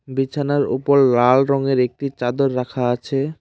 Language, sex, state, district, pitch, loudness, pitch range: Bengali, male, West Bengal, Cooch Behar, 135 Hz, -18 LUFS, 125-140 Hz